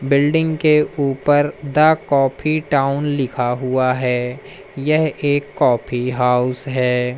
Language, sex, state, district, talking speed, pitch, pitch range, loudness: Hindi, male, Madhya Pradesh, Umaria, 115 wpm, 140 Hz, 125-150 Hz, -17 LUFS